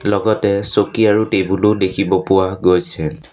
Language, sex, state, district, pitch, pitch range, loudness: Assamese, male, Assam, Sonitpur, 100 Hz, 95-105 Hz, -15 LUFS